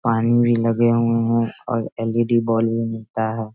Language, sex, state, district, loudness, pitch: Hindi, male, Bihar, Sitamarhi, -20 LUFS, 115 Hz